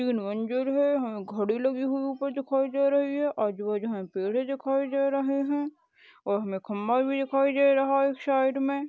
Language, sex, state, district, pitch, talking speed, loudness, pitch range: Hindi, male, Maharashtra, Chandrapur, 270 Hz, 200 wpm, -27 LUFS, 225-275 Hz